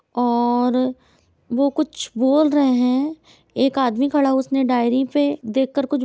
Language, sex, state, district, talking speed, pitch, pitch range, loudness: Hindi, female, Uttar Pradesh, Jalaun, 170 wpm, 265 Hz, 250-280 Hz, -19 LUFS